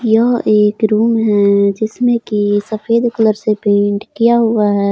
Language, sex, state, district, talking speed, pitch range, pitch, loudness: Hindi, male, Jharkhand, Palamu, 160 wpm, 205-230 Hz, 215 Hz, -13 LUFS